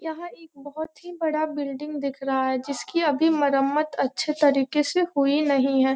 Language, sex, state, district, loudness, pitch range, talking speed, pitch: Hindi, female, Bihar, Gopalganj, -24 LUFS, 275-315 Hz, 170 wpm, 290 Hz